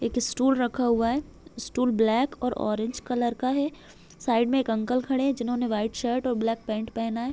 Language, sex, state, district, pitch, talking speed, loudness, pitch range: Hindi, female, Chhattisgarh, Bilaspur, 245 Hz, 215 wpm, -26 LUFS, 230-255 Hz